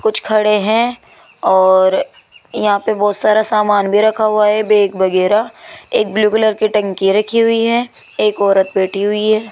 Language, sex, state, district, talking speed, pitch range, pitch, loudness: Hindi, female, Rajasthan, Jaipur, 175 wpm, 205-220 Hz, 215 Hz, -14 LUFS